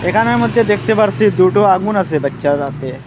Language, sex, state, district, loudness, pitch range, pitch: Bengali, male, Assam, Hailakandi, -14 LUFS, 145-215 Hz, 195 Hz